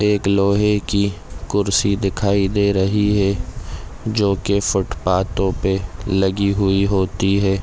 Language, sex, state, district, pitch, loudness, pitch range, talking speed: Hindi, male, Uttar Pradesh, Deoria, 100 Hz, -18 LUFS, 95-100 Hz, 125 wpm